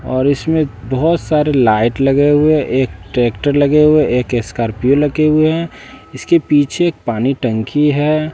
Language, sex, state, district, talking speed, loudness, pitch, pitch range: Hindi, male, Bihar, West Champaran, 150 wpm, -14 LUFS, 145 Hz, 125-155 Hz